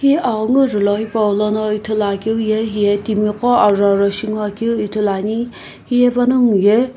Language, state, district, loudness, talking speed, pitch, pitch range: Sumi, Nagaland, Kohima, -16 LUFS, 145 wpm, 215 Hz, 205-235 Hz